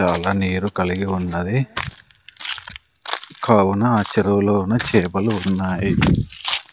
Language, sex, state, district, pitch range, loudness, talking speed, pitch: Telugu, male, Andhra Pradesh, Sri Satya Sai, 95-105 Hz, -20 LUFS, 90 wpm, 100 Hz